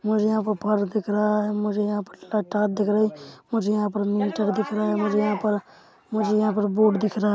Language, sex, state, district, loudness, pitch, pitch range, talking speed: Hindi, male, Chhattisgarh, Korba, -24 LUFS, 210 Hz, 205-215 Hz, 235 wpm